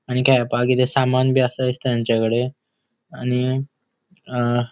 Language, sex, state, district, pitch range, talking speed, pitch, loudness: Konkani, male, Goa, North and South Goa, 120-130 Hz, 140 wpm, 125 Hz, -20 LUFS